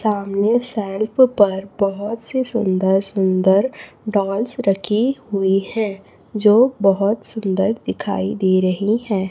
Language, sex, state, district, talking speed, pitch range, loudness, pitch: Hindi, female, Chhattisgarh, Raipur, 115 wpm, 195-225 Hz, -18 LUFS, 205 Hz